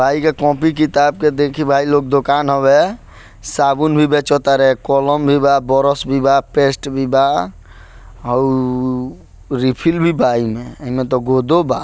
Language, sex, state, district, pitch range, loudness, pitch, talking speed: Bhojpuri, male, Bihar, Gopalganj, 125-145 Hz, -15 LUFS, 135 Hz, 150 wpm